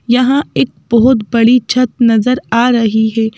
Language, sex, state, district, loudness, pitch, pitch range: Hindi, female, Madhya Pradesh, Bhopal, -12 LUFS, 240 Hz, 225-250 Hz